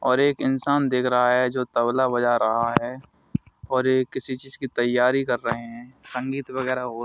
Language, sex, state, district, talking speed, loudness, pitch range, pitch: Hindi, male, Haryana, Charkhi Dadri, 195 wpm, -23 LUFS, 120-130 Hz, 125 Hz